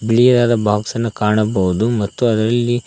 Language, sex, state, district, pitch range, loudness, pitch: Kannada, male, Karnataka, Koppal, 105-120 Hz, -16 LUFS, 115 Hz